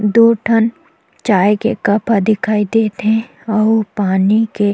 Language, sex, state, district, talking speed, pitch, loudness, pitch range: Chhattisgarhi, female, Chhattisgarh, Jashpur, 150 wpm, 220 Hz, -14 LUFS, 205-230 Hz